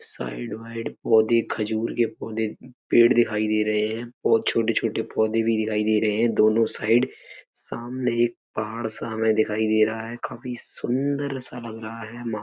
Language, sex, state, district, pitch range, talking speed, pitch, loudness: Hindi, male, Uttar Pradesh, Etah, 110-120 Hz, 190 wpm, 115 Hz, -24 LUFS